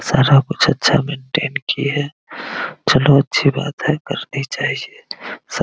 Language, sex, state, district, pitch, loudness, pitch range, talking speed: Hindi, male, Bihar, Araria, 140 Hz, -17 LUFS, 140-150 Hz, 150 wpm